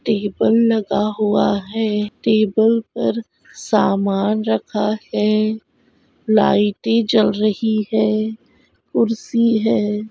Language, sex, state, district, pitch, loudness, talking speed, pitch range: Hindi, female, Goa, North and South Goa, 215 Hz, -18 LUFS, 90 wpm, 210-225 Hz